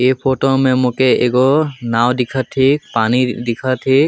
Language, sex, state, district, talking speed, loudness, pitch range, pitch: Sadri, male, Chhattisgarh, Jashpur, 175 wpm, -15 LUFS, 125-135 Hz, 130 Hz